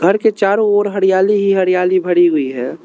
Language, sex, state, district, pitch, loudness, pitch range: Hindi, male, Arunachal Pradesh, Lower Dibang Valley, 190 Hz, -14 LUFS, 175-205 Hz